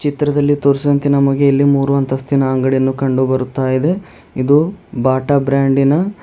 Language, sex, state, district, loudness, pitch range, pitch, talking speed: Kannada, male, Karnataka, Bidar, -15 LUFS, 130-145 Hz, 140 Hz, 125 wpm